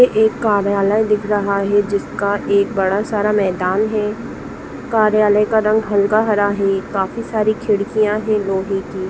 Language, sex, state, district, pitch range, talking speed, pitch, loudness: Hindi, female, Bihar, Lakhisarai, 200-215 Hz, 150 wpm, 210 Hz, -17 LUFS